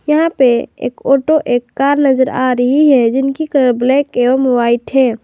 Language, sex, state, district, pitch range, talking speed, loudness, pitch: Hindi, female, Jharkhand, Ranchi, 245-280 Hz, 185 wpm, -13 LUFS, 265 Hz